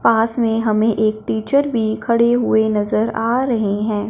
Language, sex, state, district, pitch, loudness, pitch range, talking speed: Hindi, male, Punjab, Fazilka, 225 Hz, -17 LUFS, 215-230 Hz, 175 wpm